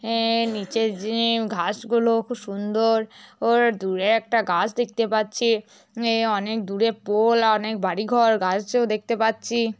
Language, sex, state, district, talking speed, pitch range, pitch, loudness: Bengali, female, West Bengal, North 24 Parganas, 140 wpm, 210-230 Hz, 225 Hz, -22 LUFS